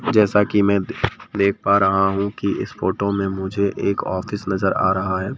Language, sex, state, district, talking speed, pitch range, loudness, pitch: Hindi, male, Madhya Pradesh, Bhopal, 200 wpm, 95-100 Hz, -20 LUFS, 100 Hz